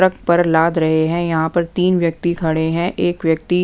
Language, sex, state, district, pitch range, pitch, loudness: Hindi, female, Punjab, Pathankot, 160-175 Hz, 170 Hz, -17 LUFS